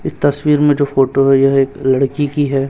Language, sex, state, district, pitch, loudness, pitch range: Hindi, male, Chhattisgarh, Raipur, 135 Hz, -14 LUFS, 135-145 Hz